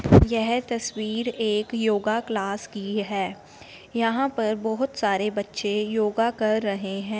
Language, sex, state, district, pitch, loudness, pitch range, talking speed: Hindi, female, Punjab, Fazilka, 215 Hz, -25 LUFS, 205-230 Hz, 135 wpm